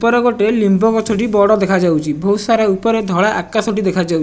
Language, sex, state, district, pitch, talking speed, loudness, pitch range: Odia, male, Odisha, Nuapada, 210 Hz, 185 wpm, -14 LUFS, 190-220 Hz